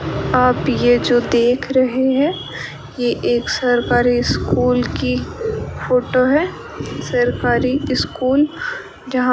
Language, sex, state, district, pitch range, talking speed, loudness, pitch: Hindi, female, Rajasthan, Bikaner, 240-265 Hz, 110 wpm, -17 LUFS, 245 Hz